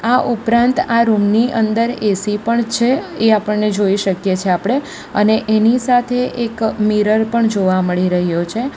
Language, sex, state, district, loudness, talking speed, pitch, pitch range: Gujarati, female, Gujarat, Valsad, -15 LUFS, 170 wpm, 220 Hz, 205-235 Hz